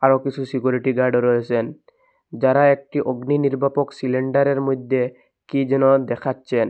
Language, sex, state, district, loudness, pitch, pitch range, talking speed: Bengali, male, Assam, Hailakandi, -20 LUFS, 135 Hz, 130-140 Hz, 125 wpm